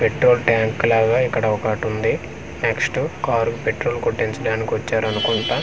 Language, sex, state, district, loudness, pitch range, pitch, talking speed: Telugu, male, Andhra Pradesh, Manyam, -20 LUFS, 110-115 Hz, 110 Hz, 130 wpm